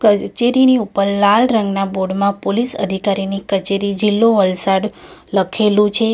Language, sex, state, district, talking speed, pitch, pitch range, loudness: Gujarati, female, Gujarat, Valsad, 115 wpm, 200 Hz, 195-220 Hz, -15 LUFS